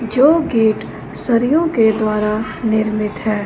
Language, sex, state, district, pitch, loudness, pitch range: Hindi, female, Punjab, Fazilka, 220 Hz, -16 LUFS, 215-245 Hz